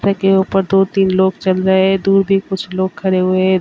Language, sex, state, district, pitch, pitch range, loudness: Hindi, female, Uttar Pradesh, Varanasi, 190 Hz, 185-195 Hz, -14 LUFS